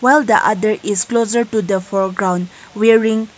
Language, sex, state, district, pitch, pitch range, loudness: English, female, Nagaland, Kohima, 215 Hz, 195-225 Hz, -15 LUFS